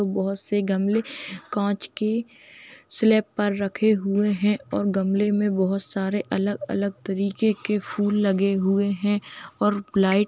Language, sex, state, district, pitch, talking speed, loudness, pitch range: Hindi, female, Bihar, Darbhanga, 205 Hz, 140 wpm, -24 LUFS, 195-210 Hz